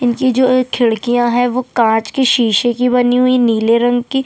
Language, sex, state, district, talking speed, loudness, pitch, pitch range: Hindi, female, Chhattisgarh, Sukma, 225 wpm, -13 LUFS, 245 Hz, 235-255 Hz